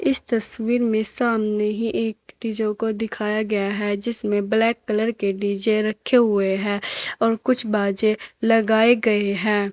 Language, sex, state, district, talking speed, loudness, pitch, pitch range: Hindi, female, Uttar Pradesh, Saharanpur, 155 wpm, -19 LUFS, 220 Hz, 205-225 Hz